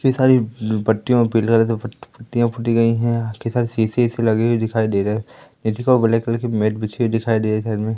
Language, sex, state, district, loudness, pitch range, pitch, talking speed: Hindi, male, Madhya Pradesh, Katni, -19 LUFS, 110-120 Hz, 115 Hz, 255 wpm